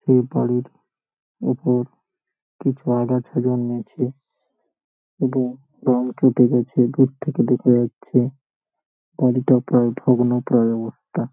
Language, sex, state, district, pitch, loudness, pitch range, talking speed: Bengali, male, West Bengal, Paschim Medinipur, 125 Hz, -20 LUFS, 125-130 Hz, 95 wpm